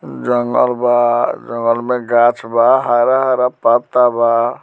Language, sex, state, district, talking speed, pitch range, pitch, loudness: Bhojpuri, male, Bihar, Muzaffarpur, 115 wpm, 115-125 Hz, 120 Hz, -14 LUFS